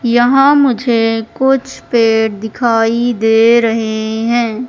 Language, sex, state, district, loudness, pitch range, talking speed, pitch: Hindi, female, Madhya Pradesh, Katni, -12 LUFS, 225-240 Hz, 100 wpm, 230 Hz